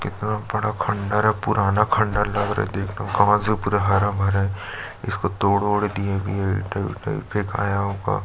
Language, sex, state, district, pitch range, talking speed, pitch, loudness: Hindi, male, Chhattisgarh, Jashpur, 100-105 Hz, 165 wpm, 100 Hz, -22 LUFS